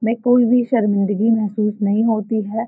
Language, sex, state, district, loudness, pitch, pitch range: Hindi, female, Uttar Pradesh, Varanasi, -17 LUFS, 220 Hz, 210-230 Hz